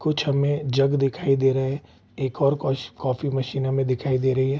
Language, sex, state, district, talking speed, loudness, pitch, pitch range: Hindi, male, Bihar, Vaishali, 235 wpm, -23 LUFS, 135 Hz, 130-140 Hz